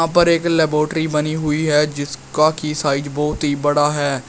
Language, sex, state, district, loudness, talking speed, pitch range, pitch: Hindi, male, Uttar Pradesh, Shamli, -18 LUFS, 180 wpm, 145-155 Hz, 150 Hz